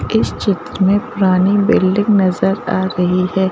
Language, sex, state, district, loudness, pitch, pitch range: Hindi, female, Madhya Pradesh, Bhopal, -15 LUFS, 190 Hz, 185-205 Hz